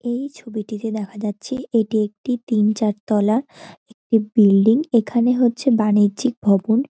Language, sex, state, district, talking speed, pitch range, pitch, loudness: Bengali, female, West Bengal, North 24 Parganas, 120 wpm, 210-245 Hz, 225 Hz, -19 LUFS